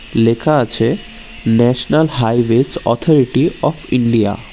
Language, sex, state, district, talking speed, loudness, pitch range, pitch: Bengali, male, West Bengal, Cooch Behar, 105 wpm, -15 LUFS, 115-150 Hz, 120 Hz